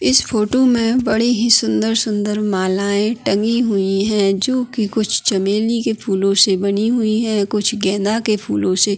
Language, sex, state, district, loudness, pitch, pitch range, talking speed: Hindi, female, Uttarakhand, Tehri Garhwal, -16 LUFS, 210 Hz, 195-225 Hz, 165 wpm